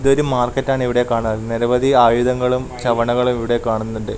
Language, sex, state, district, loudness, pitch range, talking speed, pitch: Malayalam, male, Kerala, Kasaragod, -17 LUFS, 115-125 Hz, 130 wpm, 120 Hz